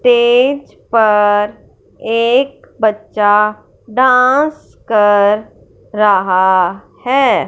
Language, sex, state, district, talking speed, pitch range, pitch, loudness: Hindi, male, Punjab, Fazilka, 65 wpm, 205-250 Hz, 215 Hz, -13 LUFS